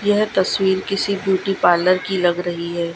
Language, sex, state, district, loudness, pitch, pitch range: Hindi, female, Gujarat, Gandhinagar, -18 LUFS, 185 Hz, 175-195 Hz